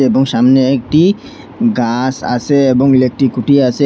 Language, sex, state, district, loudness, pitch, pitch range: Bengali, male, Assam, Hailakandi, -12 LUFS, 135 Hz, 125-140 Hz